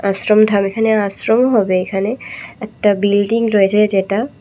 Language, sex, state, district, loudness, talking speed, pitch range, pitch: Bengali, female, Tripura, West Tripura, -15 LUFS, 135 wpm, 195-220 Hz, 205 Hz